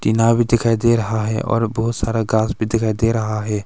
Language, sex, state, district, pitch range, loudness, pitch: Hindi, male, Arunachal Pradesh, Longding, 110-115 Hz, -18 LUFS, 115 Hz